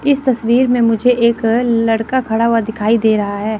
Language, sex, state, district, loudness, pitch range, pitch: Hindi, female, Chandigarh, Chandigarh, -14 LUFS, 220-245 Hz, 230 Hz